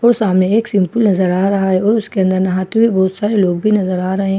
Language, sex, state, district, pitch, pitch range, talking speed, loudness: Hindi, female, Bihar, Katihar, 195 Hz, 185-215 Hz, 315 wpm, -14 LUFS